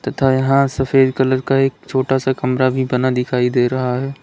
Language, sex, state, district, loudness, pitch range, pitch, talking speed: Hindi, male, Uttar Pradesh, Lalitpur, -17 LUFS, 130-135 Hz, 130 Hz, 210 wpm